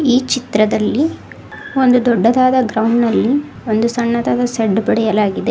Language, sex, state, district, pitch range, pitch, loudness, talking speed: Kannada, female, Karnataka, Koppal, 220-255 Hz, 235 Hz, -15 LUFS, 110 wpm